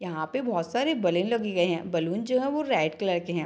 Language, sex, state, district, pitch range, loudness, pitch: Hindi, female, Bihar, Madhepura, 170-245 Hz, -27 LUFS, 180 Hz